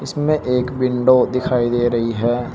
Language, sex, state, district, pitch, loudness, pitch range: Hindi, male, Uttar Pradesh, Shamli, 125 Hz, -18 LUFS, 120-130 Hz